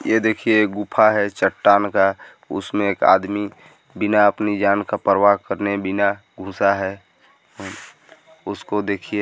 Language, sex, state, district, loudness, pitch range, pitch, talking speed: Hindi, male, Chhattisgarh, Sarguja, -19 LUFS, 100-105 Hz, 100 Hz, 145 wpm